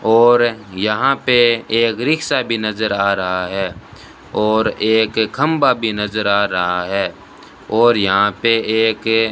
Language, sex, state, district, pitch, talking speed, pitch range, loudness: Hindi, male, Rajasthan, Bikaner, 110 Hz, 150 wpm, 105-115 Hz, -16 LUFS